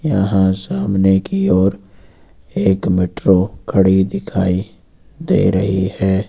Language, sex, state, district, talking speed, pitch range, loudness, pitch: Hindi, male, Uttar Pradesh, Lucknow, 105 wpm, 95-100 Hz, -16 LUFS, 95 Hz